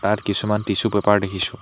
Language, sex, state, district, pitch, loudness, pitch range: Assamese, male, Assam, Hailakandi, 105 Hz, -20 LUFS, 100-110 Hz